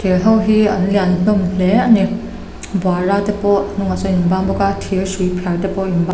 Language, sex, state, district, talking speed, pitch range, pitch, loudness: Mizo, female, Mizoram, Aizawl, 245 wpm, 185-200 Hz, 195 Hz, -16 LUFS